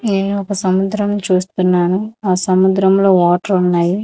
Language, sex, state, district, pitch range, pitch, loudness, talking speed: Telugu, female, Andhra Pradesh, Manyam, 185-200 Hz, 190 Hz, -15 LUFS, 120 wpm